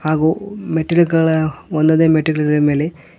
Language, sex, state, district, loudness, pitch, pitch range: Kannada, male, Karnataka, Koppal, -16 LUFS, 160 Hz, 155-165 Hz